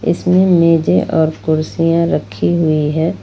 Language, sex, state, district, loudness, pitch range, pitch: Hindi, female, Jharkhand, Ranchi, -14 LUFS, 160-170 Hz, 165 Hz